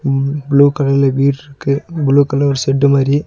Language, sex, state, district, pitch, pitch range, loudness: Tamil, male, Tamil Nadu, Nilgiris, 140 Hz, 135-140 Hz, -14 LUFS